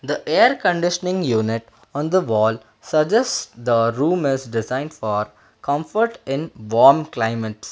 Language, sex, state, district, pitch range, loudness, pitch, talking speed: English, male, Karnataka, Bangalore, 115-175 Hz, -20 LUFS, 135 Hz, 130 wpm